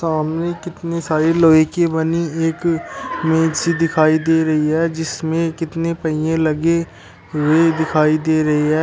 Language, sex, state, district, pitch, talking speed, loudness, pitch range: Hindi, male, Uttar Pradesh, Shamli, 160 Hz, 150 wpm, -17 LUFS, 155-165 Hz